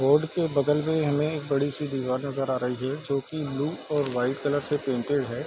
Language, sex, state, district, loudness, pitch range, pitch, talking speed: Hindi, male, Bihar, East Champaran, -27 LUFS, 135-150 Hz, 145 Hz, 240 wpm